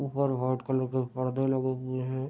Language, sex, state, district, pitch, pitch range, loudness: Hindi, male, Bihar, Madhepura, 130 Hz, 130-135 Hz, -30 LUFS